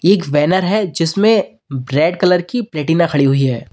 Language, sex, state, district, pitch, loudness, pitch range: Hindi, male, Uttar Pradesh, Lalitpur, 170 Hz, -15 LUFS, 145-190 Hz